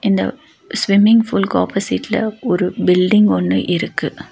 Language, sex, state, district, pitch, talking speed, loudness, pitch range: Tamil, female, Tamil Nadu, Nilgiris, 205 Hz, 110 wpm, -16 LUFS, 180-220 Hz